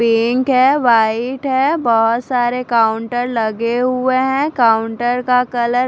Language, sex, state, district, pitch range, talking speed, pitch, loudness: Hindi, female, Punjab, Fazilka, 230-255 Hz, 145 wpm, 245 Hz, -15 LUFS